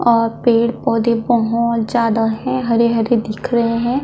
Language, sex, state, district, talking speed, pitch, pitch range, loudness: Hindi, female, Chhattisgarh, Kabirdham, 165 wpm, 235 Hz, 230-240 Hz, -16 LUFS